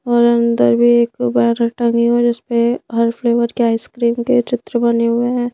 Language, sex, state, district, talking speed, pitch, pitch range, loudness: Hindi, female, Madhya Pradesh, Bhopal, 185 wpm, 235 Hz, 235-240 Hz, -15 LUFS